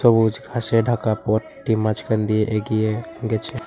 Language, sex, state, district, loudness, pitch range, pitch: Bengali, male, West Bengal, Alipurduar, -21 LUFS, 110-115 Hz, 110 Hz